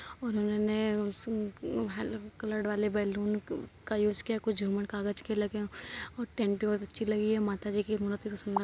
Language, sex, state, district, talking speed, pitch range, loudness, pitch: Hindi, male, Uttar Pradesh, Muzaffarnagar, 215 wpm, 205-215 Hz, -33 LUFS, 210 Hz